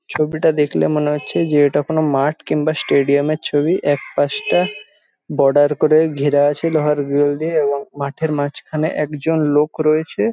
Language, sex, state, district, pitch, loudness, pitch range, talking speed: Bengali, male, West Bengal, Jhargram, 150 Hz, -17 LUFS, 145-155 Hz, 165 wpm